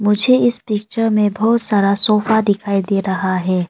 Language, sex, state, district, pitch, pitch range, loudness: Hindi, female, Arunachal Pradesh, Longding, 210 Hz, 195-220 Hz, -15 LUFS